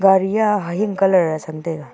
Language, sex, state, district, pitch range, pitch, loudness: Wancho, female, Arunachal Pradesh, Longding, 160-200 Hz, 190 Hz, -18 LUFS